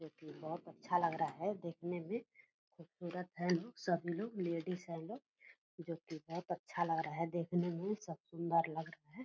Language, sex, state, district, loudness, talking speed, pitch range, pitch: Hindi, female, Bihar, Purnia, -41 LUFS, 200 wpm, 165-180 Hz, 170 Hz